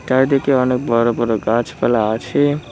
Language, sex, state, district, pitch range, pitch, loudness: Bengali, male, West Bengal, Cooch Behar, 115-135 Hz, 125 Hz, -17 LUFS